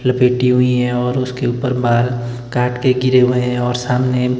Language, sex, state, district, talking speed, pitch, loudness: Hindi, male, Himachal Pradesh, Shimla, 190 wpm, 125 Hz, -16 LUFS